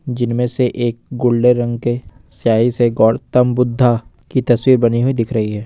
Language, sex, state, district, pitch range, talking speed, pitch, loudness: Hindi, male, Jharkhand, Ranchi, 115-125 Hz, 180 wpm, 120 Hz, -16 LUFS